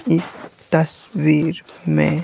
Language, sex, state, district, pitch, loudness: Hindi, male, Bihar, Patna, 155 Hz, -19 LUFS